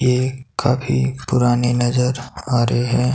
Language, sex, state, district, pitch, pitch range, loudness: Hindi, male, Himachal Pradesh, Shimla, 125 Hz, 120-125 Hz, -19 LUFS